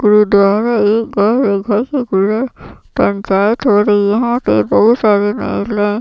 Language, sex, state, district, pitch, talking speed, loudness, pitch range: Hindi, female, Bihar, Katihar, 210 Hz, 70 wpm, -13 LUFS, 200-230 Hz